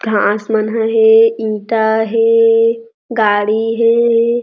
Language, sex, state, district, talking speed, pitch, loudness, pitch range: Chhattisgarhi, female, Chhattisgarh, Jashpur, 110 wpm, 225 Hz, -13 LUFS, 220-235 Hz